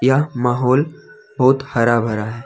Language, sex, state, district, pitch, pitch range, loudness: Hindi, male, Jharkhand, Deoghar, 125 Hz, 120-140 Hz, -17 LUFS